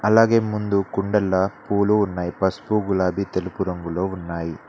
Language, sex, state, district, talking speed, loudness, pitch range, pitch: Telugu, male, Telangana, Mahabubabad, 130 wpm, -22 LUFS, 90-105 Hz, 95 Hz